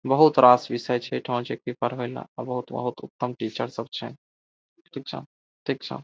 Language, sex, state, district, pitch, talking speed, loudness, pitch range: Maithili, male, Bihar, Saharsa, 125 Hz, 180 wpm, -25 LUFS, 115-125 Hz